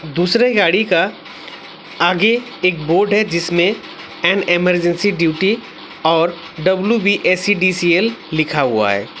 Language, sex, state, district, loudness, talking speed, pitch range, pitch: Hindi, male, West Bengal, Alipurduar, -15 LUFS, 105 wpm, 165-200 Hz, 175 Hz